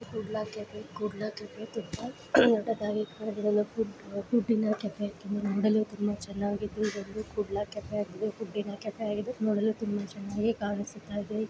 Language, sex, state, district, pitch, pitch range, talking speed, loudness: Kannada, female, Karnataka, Dakshina Kannada, 210 Hz, 205-215 Hz, 120 wpm, -32 LUFS